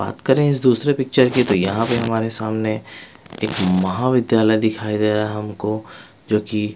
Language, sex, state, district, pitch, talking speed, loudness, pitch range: Hindi, male, Bihar, West Champaran, 110 Hz, 180 wpm, -19 LUFS, 105-125 Hz